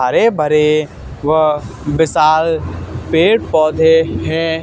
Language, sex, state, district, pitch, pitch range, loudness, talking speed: Hindi, male, Haryana, Charkhi Dadri, 155 Hz, 150-160 Hz, -14 LUFS, 90 wpm